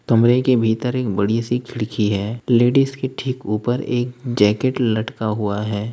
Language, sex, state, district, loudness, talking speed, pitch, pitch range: Hindi, male, Uttar Pradesh, Lalitpur, -19 LUFS, 170 wpm, 120 Hz, 105-125 Hz